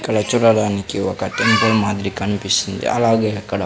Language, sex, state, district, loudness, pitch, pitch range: Telugu, male, Andhra Pradesh, Sri Satya Sai, -17 LUFS, 105 Hz, 100-115 Hz